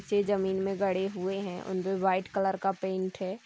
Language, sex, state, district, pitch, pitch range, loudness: Hindi, female, Chhattisgarh, Sukma, 190 Hz, 185-195 Hz, -30 LUFS